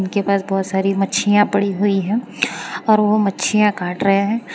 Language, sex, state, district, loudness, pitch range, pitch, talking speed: Hindi, female, Gujarat, Valsad, -17 LUFS, 195-210 Hz, 200 Hz, 185 wpm